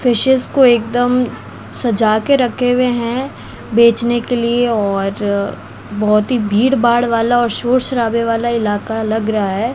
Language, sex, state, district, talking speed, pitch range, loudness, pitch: Hindi, female, Rajasthan, Bikaner, 155 wpm, 220-245 Hz, -15 LUFS, 235 Hz